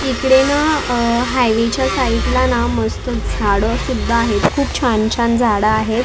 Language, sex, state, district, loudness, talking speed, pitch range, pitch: Marathi, female, Maharashtra, Mumbai Suburban, -16 LUFS, 150 wpm, 225-265 Hz, 235 Hz